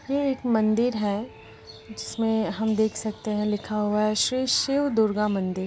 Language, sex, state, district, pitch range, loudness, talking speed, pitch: Hindi, female, Bihar, Lakhisarai, 210-230 Hz, -25 LUFS, 170 wpm, 215 Hz